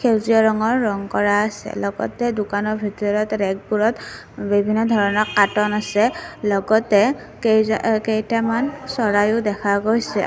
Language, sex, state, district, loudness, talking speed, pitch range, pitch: Assamese, female, Assam, Kamrup Metropolitan, -19 LUFS, 110 wpm, 205-225 Hz, 215 Hz